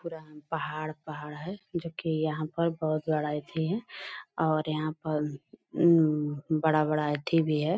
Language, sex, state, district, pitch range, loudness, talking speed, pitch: Hindi, female, Bihar, Purnia, 150-165 Hz, -29 LUFS, 160 wpm, 155 Hz